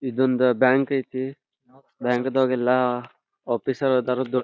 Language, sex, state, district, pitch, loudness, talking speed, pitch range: Kannada, male, Karnataka, Belgaum, 130 Hz, -23 LUFS, 110 wpm, 125-130 Hz